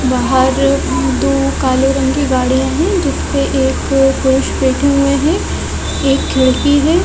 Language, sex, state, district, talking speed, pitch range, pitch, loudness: Hindi, female, Chhattisgarh, Balrampur, 130 wpm, 265-285 Hz, 270 Hz, -13 LUFS